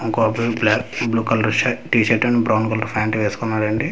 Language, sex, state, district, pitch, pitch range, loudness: Telugu, male, Andhra Pradesh, Manyam, 110 Hz, 110-115 Hz, -19 LUFS